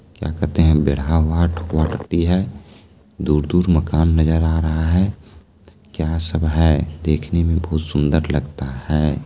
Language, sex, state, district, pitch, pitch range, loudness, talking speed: Maithili, male, Bihar, Supaul, 80 Hz, 75-85 Hz, -19 LUFS, 135 wpm